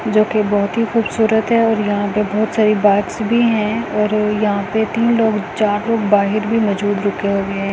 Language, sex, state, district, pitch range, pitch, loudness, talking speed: Hindi, female, Delhi, New Delhi, 205-220 Hz, 215 Hz, -16 LUFS, 195 wpm